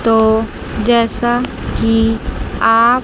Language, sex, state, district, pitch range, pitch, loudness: Hindi, female, Chandigarh, Chandigarh, 225-240 Hz, 225 Hz, -15 LUFS